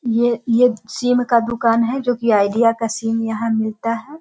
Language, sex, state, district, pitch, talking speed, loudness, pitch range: Hindi, female, Bihar, Sitamarhi, 230 Hz, 185 wpm, -18 LUFS, 225-240 Hz